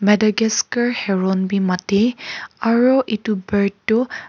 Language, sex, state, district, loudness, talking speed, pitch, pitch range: Nagamese, female, Nagaland, Kohima, -18 LUFS, 110 wpm, 215 Hz, 195-235 Hz